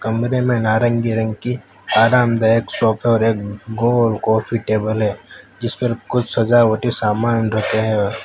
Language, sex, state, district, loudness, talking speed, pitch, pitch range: Hindi, male, Gujarat, Valsad, -17 LUFS, 145 wpm, 115 Hz, 110-120 Hz